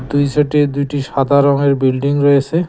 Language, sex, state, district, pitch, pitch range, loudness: Bengali, male, West Bengal, Cooch Behar, 140 Hz, 140-145 Hz, -14 LUFS